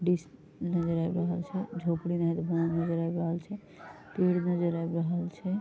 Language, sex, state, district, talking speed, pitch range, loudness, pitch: Maithili, female, Bihar, Vaishali, 160 wpm, 165-180 Hz, -31 LUFS, 175 Hz